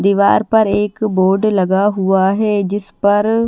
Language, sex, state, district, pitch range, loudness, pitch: Hindi, female, Haryana, Charkhi Dadri, 195-210 Hz, -14 LUFS, 200 Hz